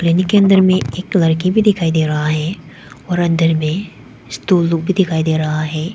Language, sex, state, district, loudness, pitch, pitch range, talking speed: Hindi, female, Arunachal Pradesh, Papum Pare, -15 LUFS, 165 Hz, 155-185 Hz, 200 wpm